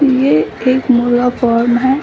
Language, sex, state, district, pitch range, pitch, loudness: Hindi, female, Bihar, Samastipur, 240-260 Hz, 245 Hz, -13 LUFS